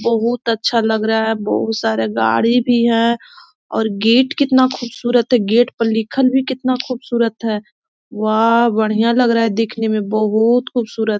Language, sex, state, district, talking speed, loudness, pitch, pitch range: Hindi, female, Chhattisgarh, Korba, 170 wpm, -16 LUFS, 230 Hz, 220-245 Hz